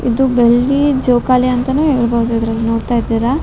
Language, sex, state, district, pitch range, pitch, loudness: Kannada, female, Karnataka, Raichur, 235-260 Hz, 245 Hz, -14 LUFS